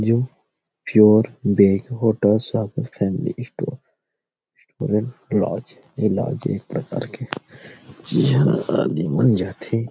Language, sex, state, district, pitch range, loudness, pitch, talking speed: Chhattisgarhi, male, Chhattisgarh, Rajnandgaon, 110-150 Hz, -20 LUFS, 120 Hz, 85 wpm